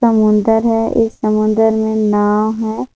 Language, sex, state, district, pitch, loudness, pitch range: Hindi, female, Jharkhand, Palamu, 220 Hz, -14 LUFS, 215-225 Hz